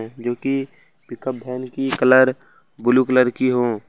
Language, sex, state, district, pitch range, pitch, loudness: Hindi, male, Jharkhand, Ranchi, 120-130 Hz, 125 Hz, -19 LUFS